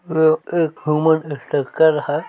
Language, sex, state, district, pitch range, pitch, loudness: Hindi, male, Uttar Pradesh, Varanasi, 145-160 Hz, 155 Hz, -18 LUFS